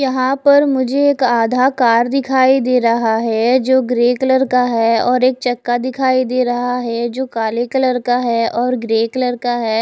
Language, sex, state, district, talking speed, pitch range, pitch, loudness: Hindi, female, Odisha, Khordha, 195 wpm, 235-260 Hz, 250 Hz, -15 LUFS